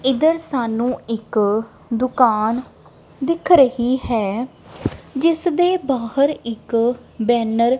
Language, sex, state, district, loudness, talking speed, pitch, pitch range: Punjabi, female, Punjab, Kapurthala, -19 LUFS, 100 wpm, 250 Hz, 230-275 Hz